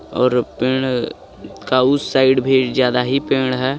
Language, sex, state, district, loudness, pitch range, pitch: Hindi, male, Jharkhand, Garhwa, -17 LUFS, 125-130 Hz, 130 Hz